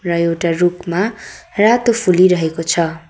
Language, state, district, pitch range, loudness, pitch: Nepali, West Bengal, Darjeeling, 170-195 Hz, -15 LUFS, 175 Hz